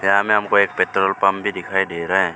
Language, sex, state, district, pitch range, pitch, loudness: Hindi, male, Arunachal Pradesh, Lower Dibang Valley, 95-100 Hz, 95 Hz, -18 LUFS